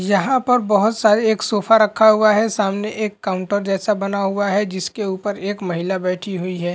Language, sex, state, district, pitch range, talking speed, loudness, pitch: Hindi, male, Chhattisgarh, Bilaspur, 190-215 Hz, 215 wpm, -18 LUFS, 205 Hz